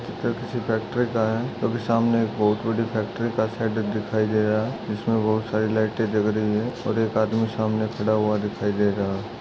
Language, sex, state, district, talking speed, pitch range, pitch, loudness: Hindi, male, Maharashtra, Solapur, 215 wpm, 105-115 Hz, 110 Hz, -24 LUFS